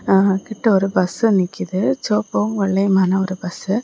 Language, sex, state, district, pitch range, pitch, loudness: Tamil, female, Tamil Nadu, Kanyakumari, 190-215 Hz, 195 Hz, -18 LUFS